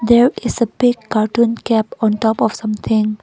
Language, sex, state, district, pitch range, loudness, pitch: English, female, Nagaland, Kohima, 215-235 Hz, -16 LUFS, 225 Hz